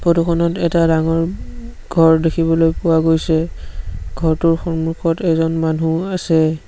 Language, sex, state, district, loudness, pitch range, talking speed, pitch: Assamese, male, Assam, Sonitpur, -16 LUFS, 160-165 Hz, 125 wpm, 165 Hz